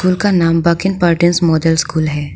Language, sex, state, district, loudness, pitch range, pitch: Hindi, female, Arunachal Pradesh, Lower Dibang Valley, -13 LUFS, 165-180 Hz, 170 Hz